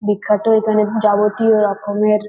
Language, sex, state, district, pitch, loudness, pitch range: Bengali, female, West Bengal, North 24 Parganas, 210 Hz, -15 LUFS, 210-215 Hz